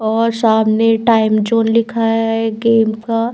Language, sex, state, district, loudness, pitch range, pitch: Hindi, female, Bihar, Patna, -14 LUFS, 220-230 Hz, 225 Hz